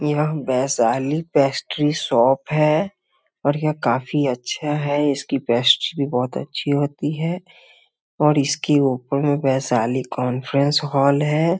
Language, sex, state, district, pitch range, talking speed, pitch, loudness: Hindi, male, Bihar, Muzaffarpur, 135-150 Hz, 125 wpm, 145 Hz, -20 LUFS